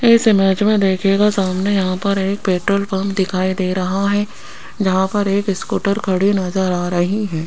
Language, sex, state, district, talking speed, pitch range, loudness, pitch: Hindi, female, Rajasthan, Jaipur, 185 wpm, 185-200 Hz, -17 LUFS, 195 Hz